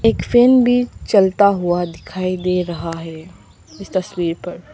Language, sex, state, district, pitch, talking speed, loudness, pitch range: Hindi, female, Arunachal Pradesh, Papum Pare, 180 Hz, 125 wpm, -17 LUFS, 170-200 Hz